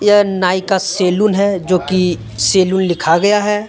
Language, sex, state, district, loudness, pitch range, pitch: Hindi, male, Jharkhand, Deoghar, -14 LUFS, 180-200 Hz, 190 Hz